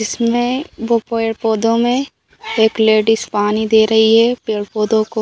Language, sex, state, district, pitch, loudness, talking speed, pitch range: Hindi, female, Uttar Pradesh, Ghazipur, 225 Hz, -15 LUFS, 140 wpm, 220-235 Hz